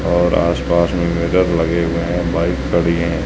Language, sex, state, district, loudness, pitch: Hindi, male, Rajasthan, Jaisalmer, -16 LUFS, 85 Hz